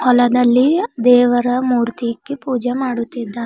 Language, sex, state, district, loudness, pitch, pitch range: Kannada, female, Karnataka, Bidar, -16 LUFS, 245 Hz, 240-255 Hz